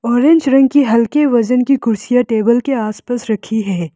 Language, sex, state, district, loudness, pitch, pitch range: Hindi, female, Arunachal Pradesh, Lower Dibang Valley, -14 LUFS, 240 Hz, 220-270 Hz